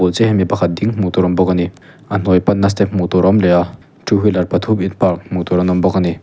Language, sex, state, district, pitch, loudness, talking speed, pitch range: Mizo, male, Mizoram, Aizawl, 95 Hz, -15 LUFS, 310 wpm, 90-100 Hz